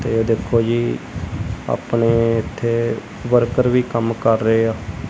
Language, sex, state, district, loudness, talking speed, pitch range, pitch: Punjabi, male, Punjab, Kapurthala, -19 LUFS, 140 wpm, 115-120 Hz, 115 Hz